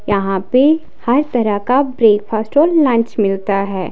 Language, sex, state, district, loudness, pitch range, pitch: Hindi, female, Himachal Pradesh, Shimla, -15 LUFS, 200-265 Hz, 225 Hz